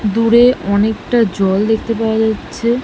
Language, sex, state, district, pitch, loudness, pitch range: Bengali, female, West Bengal, Malda, 220 Hz, -14 LUFS, 210-230 Hz